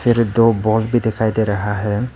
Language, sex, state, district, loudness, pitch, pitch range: Hindi, male, Arunachal Pradesh, Papum Pare, -17 LUFS, 110 Hz, 105-115 Hz